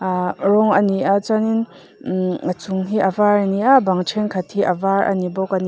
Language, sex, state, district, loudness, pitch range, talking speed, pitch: Mizo, female, Mizoram, Aizawl, -18 LUFS, 185-205 Hz, 275 wpm, 195 Hz